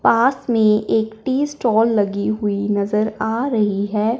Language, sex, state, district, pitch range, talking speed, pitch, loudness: Hindi, male, Punjab, Fazilka, 205-230 Hz, 155 wpm, 220 Hz, -19 LUFS